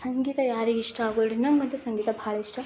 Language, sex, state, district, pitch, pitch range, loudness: Kannada, female, Karnataka, Belgaum, 230 Hz, 225-260 Hz, -27 LUFS